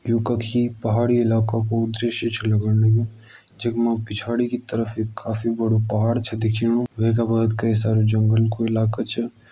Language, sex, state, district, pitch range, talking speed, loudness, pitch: Garhwali, male, Uttarakhand, Uttarkashi, 110-115 Hz, 185 wpm, -21 LUFS, 115 Hz